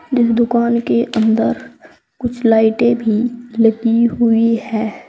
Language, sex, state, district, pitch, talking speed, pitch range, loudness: Hindi, female, Uttar Pradesh, Saharanpur, 235 Hz, 120 wpm, 225-235 Hz, -15 LUFS